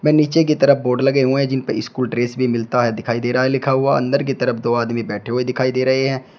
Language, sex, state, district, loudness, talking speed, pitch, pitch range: Hindi, male, Uttar Pradesh, Shamli, -18 LUFS, 280 wpm, 130 Hz, 120-135 Hz